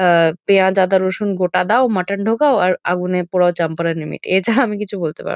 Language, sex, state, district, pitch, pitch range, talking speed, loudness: Bengali, female, West Bengal, North 24 Parganas, 185 Hz, 175-205 Hz, 210 wpm, -17 LUFS